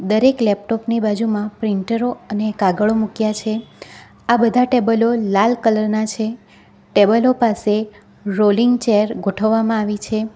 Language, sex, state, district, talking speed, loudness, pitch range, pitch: Gujarati, female, Gujarat, Valsad, 135 wpm, -17 LUFS, 210-230 Hz, 220 Hz